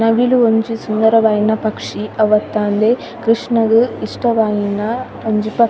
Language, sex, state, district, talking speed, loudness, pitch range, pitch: Tulu, female, Karnataka, Dakshina Kannada, 115 wpm, -15 LUFS, 215-230 Hz, 225 Hz